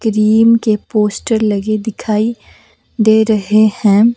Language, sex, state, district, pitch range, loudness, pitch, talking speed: Hindi, female, Himachal Pradesh, Shimla, 215-225 Hz, -13 LUFS, 215 Hz, 115 wpm